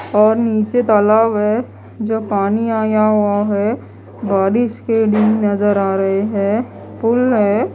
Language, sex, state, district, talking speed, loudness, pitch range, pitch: Hindi, female, Odisha, Malkangiri, 140 wpm, -15 LUFS, 205-225 Hz, 215 Hz